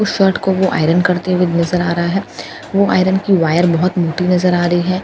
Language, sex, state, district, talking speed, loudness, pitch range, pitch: Hindi, female, Bihar, Katihar, 275 wpm, -14 LUFS, 175-190 Hz, 180 Hz